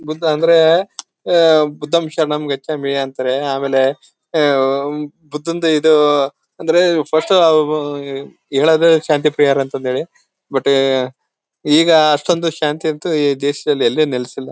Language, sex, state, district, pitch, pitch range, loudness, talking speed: Kannada, male, Karnataka, Bellary, 150 Hz, 140-160 Hz, -15 LUFS, 110 wpm